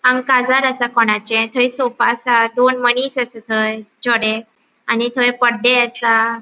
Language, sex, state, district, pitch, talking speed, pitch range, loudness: Konkani, female, Goa, North and South Goa, 240 Hz, 150 wpm, 225-250 Hz, -15 LUFS